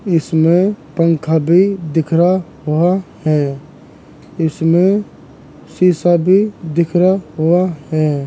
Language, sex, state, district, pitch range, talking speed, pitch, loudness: Hindi, male, Uttar Pradesh, Jalaun, 155-180 Hz, 100 wpm, 165 Hz, -15 LUFS